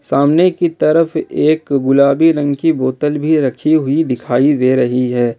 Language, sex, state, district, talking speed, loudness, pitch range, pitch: Hindi, male, Jharkhand, Ranchi, 165 wpm, -14 LUFS, 130-160 Hz, 145 Hz